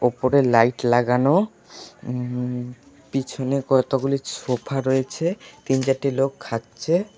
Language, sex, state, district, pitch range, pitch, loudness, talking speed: Bengali, male, West Bengal, Alipurduar, 125-140 Hz, 135 Hz, -22 LUFS, 100 wpm